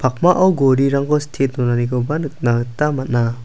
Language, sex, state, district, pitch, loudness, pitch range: Garo, male, Meghalaya, South Garo Hills, 135 Hz, -17 LUFS, 120-150 Hz